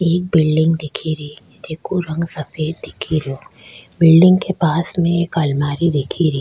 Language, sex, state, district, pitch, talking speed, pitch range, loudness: Rajasthani, female, Rajasthan, Churu, 160 Hz, 140 wpm, 155-170 Hz, -17 LUFS